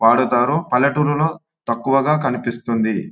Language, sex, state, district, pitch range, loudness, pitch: Telugu, male, Telangana, Nalgonda, 120-150 Hz, -18 LUFS, 135 Hz